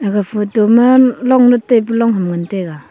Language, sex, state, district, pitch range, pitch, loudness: Wancho, female, Arunachal Pradesh, Longding, 200-245 Hz, 225 Hz, -12 LUFS